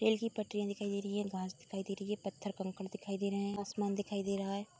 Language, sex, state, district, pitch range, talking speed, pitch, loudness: Hindi, female, Uttar Pradesh, Budaun, 195-205 Hz, 285 wpm, 200 Hz, -39 LUFS